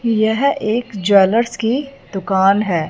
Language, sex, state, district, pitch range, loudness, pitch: Hindi, female, Punjab, Fazilka, 190-235 Hz, -16 LUFS, 215 Hz